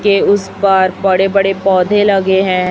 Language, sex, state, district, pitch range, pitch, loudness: Hindi, female, Chhattisgarh, Raipur, 190-200 Hz, 195 Hz, -12 LUFS